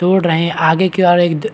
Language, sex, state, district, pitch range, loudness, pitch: Hindi, male, Chhattisgarh, Rajnandgaon, 165-185 Hz, -13 LUFS, 175 Hz